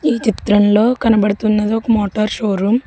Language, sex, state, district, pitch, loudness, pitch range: Telugu, female, Telangana, Hyderabad, 215 Hz, -15 LUFS, 210-230 Hz